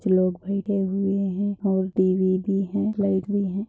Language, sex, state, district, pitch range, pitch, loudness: Hindi, female, Maharashtra, Dhule, 190-200 Hz, 195 Hz, -24 LUFS